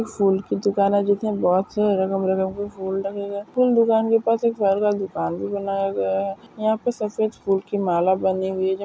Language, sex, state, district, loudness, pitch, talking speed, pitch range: Hindi, female, Maharashtra, Sindhudurg, -22 LUFS, 200 Hz, 230 wpm, 190-215 Hz